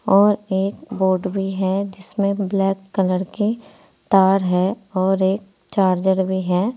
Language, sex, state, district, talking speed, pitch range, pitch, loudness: Hindi, female, Uttar Pradesh, Saharanpur, 140 wpm, 190-195 Hz, 195 Hz, -20 LUFS